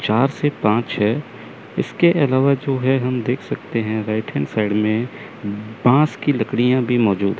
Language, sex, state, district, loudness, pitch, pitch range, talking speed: Hindi, male, Chandigarh, Chandigarh, -19 LUFS, 120 Hz, 110-135 Hz, 170 wpm